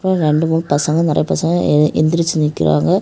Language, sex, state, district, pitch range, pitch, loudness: Tamil, female, Tamil Nadu, Kanyakumari, 150-165 Hz, 155 Hz, -15 LUFS